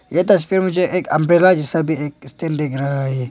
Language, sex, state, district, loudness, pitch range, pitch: Hindi, male, Arunachal Pradesh, Longding, -17 LUFS, 145-180 Hz, 160 Hz